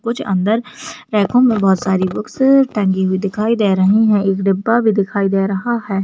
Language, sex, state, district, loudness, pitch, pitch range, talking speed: Hindi, female, Maharashtra, Pune, -15 LUFS, 205 Hz, 195-230 Hz, 200 wpm